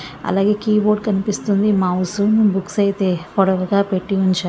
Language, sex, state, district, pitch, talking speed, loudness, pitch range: Telugu, female, Andhra Pradesh, Visakhapatnam, 200 Hz, 120 wpm, -18 LUFS, 185-210 Hz